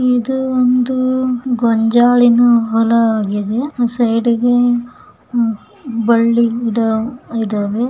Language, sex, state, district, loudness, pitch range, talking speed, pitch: Kannada, female, Karnataka, Bellary, -15 LUFS, 230-250 Hz, 70 wpm, 235 Hz